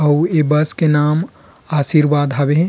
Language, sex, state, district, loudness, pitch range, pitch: Chhattisgarhi, male, Chhattisgarh, Rajnandgaon, -15 LUFS, 145-155 Hz, 150 Hz